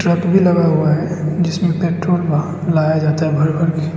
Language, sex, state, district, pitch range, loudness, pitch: Hindi, male, Arunachal Pradesh, Lower Dibang Valley, 155-175 Hz, -16 LUFS, 165 Hz